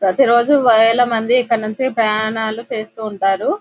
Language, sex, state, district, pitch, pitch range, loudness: Telugu, female, Telangana, Nalgonda, 225 Hz, 215-245 Hz, -15 LUFS